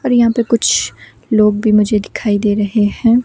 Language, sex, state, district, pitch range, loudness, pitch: Hindi, female, Himachal Pradesh, Shimla, 210-235 Hz, -14 LUFS, 215 Hz